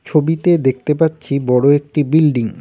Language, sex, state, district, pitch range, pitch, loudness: Bengali, male, West Bengal, Cooch Behar, 140-160 Hz, 150 Hz, -15 LUFS